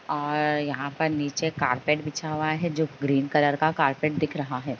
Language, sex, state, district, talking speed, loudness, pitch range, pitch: Hindi, female, Bihar, Begusarai, 200 wpm, -26 LUFS, 140-155 Hz, 150 Hz